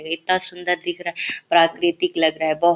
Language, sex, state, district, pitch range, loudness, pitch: Hindi, female, Chhattisgarh, Korba, 165-180 Hz, -21 LUFS, 170 Hz